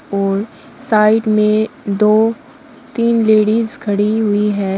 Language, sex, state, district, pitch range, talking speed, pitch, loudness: Hindi, female, Uttar Pradesh, Shamli, 210-230 Hz, 115 wpm, 215 Hz, -15 LUFS